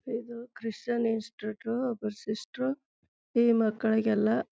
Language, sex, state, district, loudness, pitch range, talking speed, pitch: Kannada, female, Karnataka, Chamarajanagar, -30 LUFS, 220-240 Hz, 105 wpm, 230 Hz